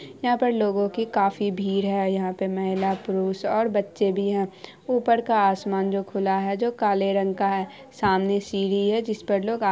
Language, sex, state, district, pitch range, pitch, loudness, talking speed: Hindi, female, Bihar, Araria, 195-215 Hz, 200 Hz, -24 LUFS, 205 wpm